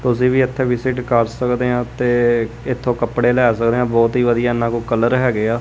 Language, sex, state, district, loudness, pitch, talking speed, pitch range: Punjabi, female, Punjab, Kapurthala, -17 LUFS, 120 Hz, 225 wpm, 115-125 Hz